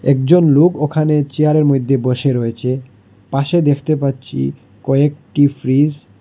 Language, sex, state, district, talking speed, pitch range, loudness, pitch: Bengali, male, Assam, Hailakandi, 135 wpm, 125-150 Hz, -15 LUFS, 140 Hz